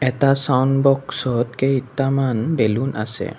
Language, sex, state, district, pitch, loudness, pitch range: Assamese, male, Assam, Kamrup Metropolitan, 135 Hz, -19 LUFS, 125-135 Hz